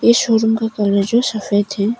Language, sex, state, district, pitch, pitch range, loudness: Hindi, female, Arunachal Pradesh, Papum Pare, 220 Hz, 205-235 Hz, -16 LUFS